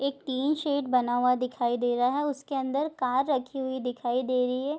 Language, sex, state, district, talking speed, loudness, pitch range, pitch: Hindi, female, Bihar, Madhepura, 225 wpm, -28 LUFS, 250-280 Hz, 260 Hz